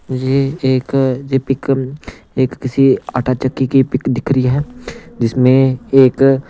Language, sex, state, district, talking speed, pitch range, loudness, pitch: Hindi, male, Punjab, Pathankot, 140 wpm, 130-135 Hz, -15 LUFS, 130 Hz